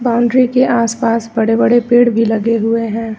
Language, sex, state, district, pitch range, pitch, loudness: Hindi, female, Uttar Pradesh, Lucknow, 225-240 Hz, 230 Hz, -13 LUFS